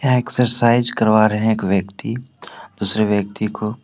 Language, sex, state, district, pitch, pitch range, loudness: Hindi, male, Jharkhand, Deoghar, 110 Hz, 105-120 Hz, -18 LUFS